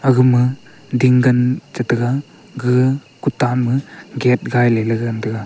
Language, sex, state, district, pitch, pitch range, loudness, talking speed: Wancho, male, Arunachal Pradesh, Longding, 125 Hz, 120-130 Hz, -17 LUFS, 165 wpm